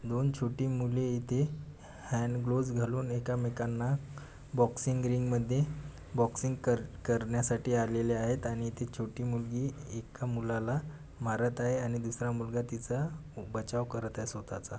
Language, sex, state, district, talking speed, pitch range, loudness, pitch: Marathi, male, Maharashtra, Pune, 125 wpm, 115-130 Hz, -34 LUFS, 120 Hz